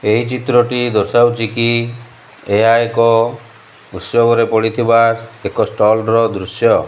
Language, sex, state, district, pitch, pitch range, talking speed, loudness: Odia, male, Odisha, Malkangiri, 115 Hz, 115-120 Hz, 95 wpm, -14 LUFS